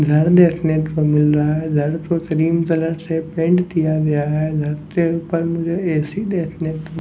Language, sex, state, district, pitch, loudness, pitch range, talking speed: Hindi, male, Haryana, Jhajjar, 160 Hz, -18 LUFS, 155-165 Hz, 195 wpm